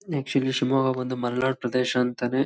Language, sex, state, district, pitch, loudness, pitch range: Kannada, male, Karnataka, Shimoga, 130 Hz, -25 LUFS, 125-135 Hz